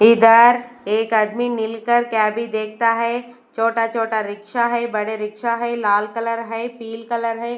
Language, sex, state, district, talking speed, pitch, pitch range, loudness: Hindi, female, Bihar, West Champaran, 160 wpm, 230 Hz, 220-235 Hz, -19 LUFS